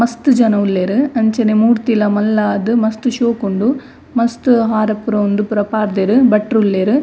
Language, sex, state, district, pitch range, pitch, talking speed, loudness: Tulu, female, Karnataka, Dakshina Kannada, 210-235 Hz, 220 Hz, 135 wpm, -14 LUFS